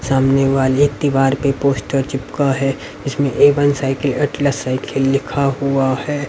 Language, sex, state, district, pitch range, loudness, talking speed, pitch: Hindi, male, Haryana, Rohtak, 135-140 Hz, -17 LUFS, 160 wpm, 135 Hz